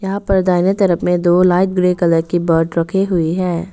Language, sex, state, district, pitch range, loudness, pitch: Hindi, female, Arunachal Pradesh, Lower Dibang Valley, 170-190 Hz, -15 LUFS, 180 Hz